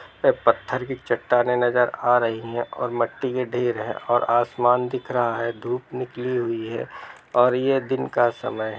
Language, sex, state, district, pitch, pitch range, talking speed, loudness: Hindi, male, Bihar, Sitamarhi, 120 Hz, 120-125 Hz, 190 wpm, -23 LUFS